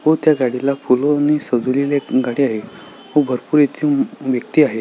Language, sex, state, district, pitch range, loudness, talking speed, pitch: Marathi, male, Maharashtra, Solapur, 130-150 Hz, -17 LUFS, 160 wpm, 140 Hz